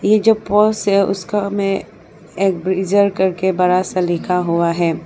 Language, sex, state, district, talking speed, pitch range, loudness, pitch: Hindi, female, Arunachal Pradesh, Lower Dibang Valley, 165 wpm, 180-200 Hz, -17 LUFS, 190 Hz